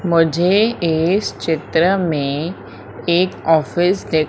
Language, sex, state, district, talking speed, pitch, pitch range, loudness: Hindi, female, Madhya Pradesh, Umaria, 100 wpm, 165 Hz, 155-180 Hz, -17 LUFS